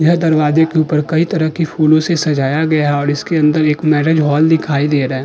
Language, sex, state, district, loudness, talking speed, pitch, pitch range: Hindi, male, Uttar Pradesh, Jalaun, -14 LUFS, 250 wpm, 155 Hz, 150-160 Hz